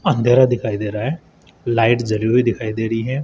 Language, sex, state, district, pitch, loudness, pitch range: Hindi, male, Rajasthan, Jaipur, 120 Hz, -18 LUFS, 110-125 Hz